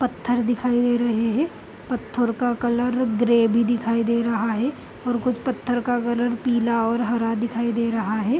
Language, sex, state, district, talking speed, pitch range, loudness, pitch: Hindi, female, Bihar, Gopalganj, 185 wpm, 230-245 Hz, -22 LUFS, 235 Hz